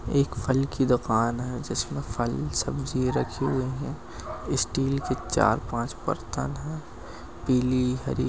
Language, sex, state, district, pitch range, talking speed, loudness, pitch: Hindi, male, Maharashtra, Aurangabad, 120-135 Hz, 135 wpm, -27 LUFS, 130 Hz